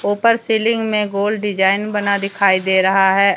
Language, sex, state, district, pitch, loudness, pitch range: Hindi, female, Jharkhand, Deoghar, 200 Hz, -15 LUFS, 195-215 Hz